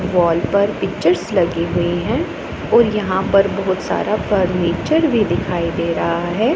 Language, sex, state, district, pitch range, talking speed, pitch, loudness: Hindi, female, Punjab, Pathankot, 175-205 Hz, 155 wpm, 185 Hz, -17 LUFS